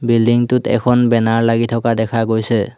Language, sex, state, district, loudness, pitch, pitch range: Assamese, male, Assam, Hailakandi, -15 LUFS, 115 Hz, 115-120 Hz